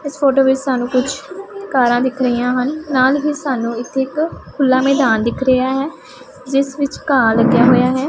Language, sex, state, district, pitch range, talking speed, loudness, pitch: Punjabi, female, Punjab, Pathankot, 250-280 Hz, 185 wpm, -16 LUFS, 265 Hz